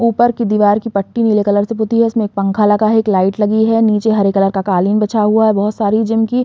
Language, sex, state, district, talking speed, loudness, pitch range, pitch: Hindi, female, Uttar Pradesh, Hamirpur, 295 wpm, -14 LUFS, 205-225 Hz, 215 Hz